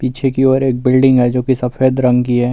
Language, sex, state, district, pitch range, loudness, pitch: Hindi, male, Uttar Pradesh, Muzaffarnagar, 125-130 Hz, -13 LUFS, 130 Hz